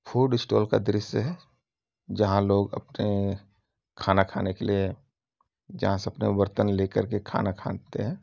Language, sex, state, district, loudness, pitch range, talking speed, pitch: Hindi, male, Uttar Pradesh, Jyotiba Phule Nagar, -27 LUFS, 100-115 Hz, 170 wpm, 100 Hz